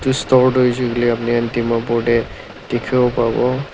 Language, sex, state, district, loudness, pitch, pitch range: Nagamese, male, Nagaland, Dimapur, -17 LUFS, 120 Hz, 115-125 Hz